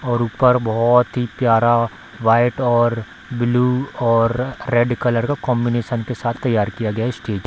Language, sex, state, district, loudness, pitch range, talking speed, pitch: Hindi, female, Bihar, Samastipur, -18 LUFS, 115-125 Hz, 170 wpm, 120 Hz